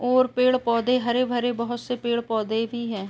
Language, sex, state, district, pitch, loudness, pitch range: Hindi, female, Uttar Pradesh, Etah, 240 Hz, -24 LUFS, 230-250 Hz